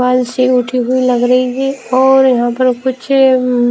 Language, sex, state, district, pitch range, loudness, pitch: Hindi, female, Himachal Pradesh, Shimla, 250-260 Hz, -12 LUFS, 255 Hz